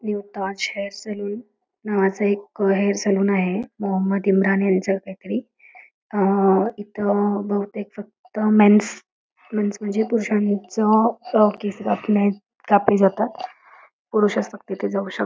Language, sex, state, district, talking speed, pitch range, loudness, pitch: Marathi, female, Karnataka, Belgaum, 105 wpm, 195-215 Hz, -21 LUFS, 205 Hz